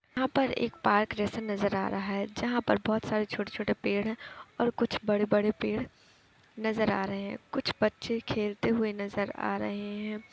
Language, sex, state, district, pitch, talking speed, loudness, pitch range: Hindi, female, Uttar Pradesh, Etah, 215 Hz, 195 wpm, -31 LUFS, 205-230 Hz